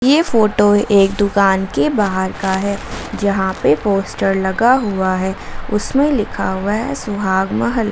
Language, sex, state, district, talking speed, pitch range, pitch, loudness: Hindi, female, Jharkhand, Garhwa, 150 wpm, 190-215 Hz, 200 Hz, -16 LUFS